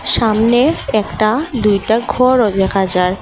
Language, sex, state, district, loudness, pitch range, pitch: Bengali, female, Assam, Hailakandi, -14 LUFS, 195-245 Hz, 215 Hz